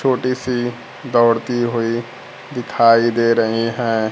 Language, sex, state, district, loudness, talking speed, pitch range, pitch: Hindi, male, Bihar, Kaimur, -17 LUFS, 115 wpm, 115-120 Hz, 120 Hz